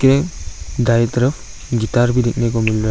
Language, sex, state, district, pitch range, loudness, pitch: Hindi, male, Arunachal Pradesh, Longding, 110-125 Hz, -17 LUFS, 120 Hz